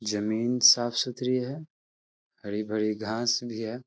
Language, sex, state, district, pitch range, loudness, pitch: Hindi, male, Bihar, Darbhanga, 105-125 Hz, -26 LUFS, 115 Hz